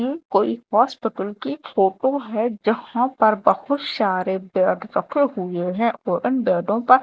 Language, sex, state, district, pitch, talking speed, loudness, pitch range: Hindi, female, Madhya Pradesh, Dhar, 230 Hz, 155 wpm, -21 LUFS, 200-260 Hz